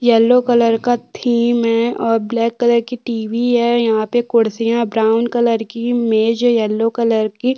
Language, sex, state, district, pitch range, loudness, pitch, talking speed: Hindi, female, Chhattisgarh, Korba, 225-240 Hz, -16 LUFS, 235 Hz, 175 wpm